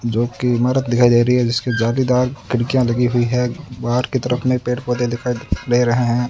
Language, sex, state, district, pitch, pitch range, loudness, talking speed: Hindi, male, Rajasthan, Bikaner, 125 Hz, 120-125 Hz, -18 LUFS, 210 wpm